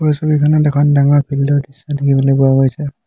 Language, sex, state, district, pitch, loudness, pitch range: Assamese, male, Assam, Hailakandi, 140 Hz, -13 LUFS, 140-150 Hz